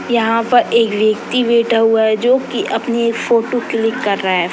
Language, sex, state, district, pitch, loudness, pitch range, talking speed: Hindi, female, Bihar, Gopalganj, 230 Hz, -15 LUFS, 220-235 Hz, 210 wpm